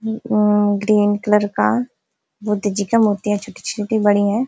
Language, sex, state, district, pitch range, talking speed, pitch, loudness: Hindi, female, Uttar Pradesh, Ghazipur, 205-220 Hz, 175 wpm, 210 Hz, -18 LUFS